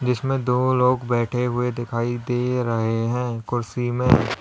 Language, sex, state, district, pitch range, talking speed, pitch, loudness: Hindi, male, Uttar Pradesh, Lalitpur, 120-125 Hz, 150 wpm, 125 Hz, -22 LUFS